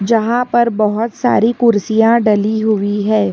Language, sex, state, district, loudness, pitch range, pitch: Hindi, female, Karnataka, Bangalore, -14 LUFS, 210-235 Hz, 220 Hz